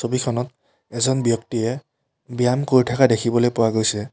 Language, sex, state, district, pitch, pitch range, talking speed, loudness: Assamese, male, Assam, Kamrup Metropolitan, 120 Hz, 115-130 Hz, 130 wpm, -20 LUFS